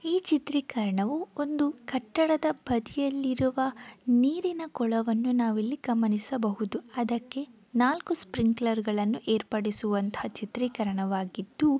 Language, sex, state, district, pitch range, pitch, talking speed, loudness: Kannada, female, Karnataka, Dakshina Kannada, 220-280 Hz, 245 Hz, 85 wpm, -29 LUFS